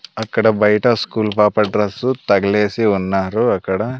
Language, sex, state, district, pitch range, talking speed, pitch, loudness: Telugu, male, Andhra Pradesh, Sri Satya Sai, 100-110 Hz, 120 wpm, 105 Hz, -16 LUFS